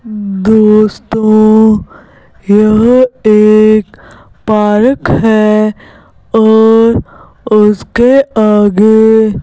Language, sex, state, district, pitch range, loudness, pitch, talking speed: Hindi, female, Gujarat, Gandhinagar, 210-220 Hz, -8 LUFS, 215 Hz, 55 wpm